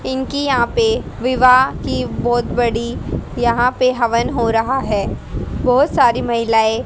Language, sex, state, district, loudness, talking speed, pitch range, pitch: Hindi, female, Haryana, Rohtak, -16 LUFS, 140 wpm, 235-260 Hz, 245 Hz